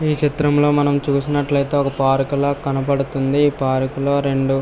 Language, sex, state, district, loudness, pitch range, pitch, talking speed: Telugu, male, Andhra Pradesh, Visakhapatnam, -18 LUFS, 135-145 Hz, 140 Hz, 155 wpm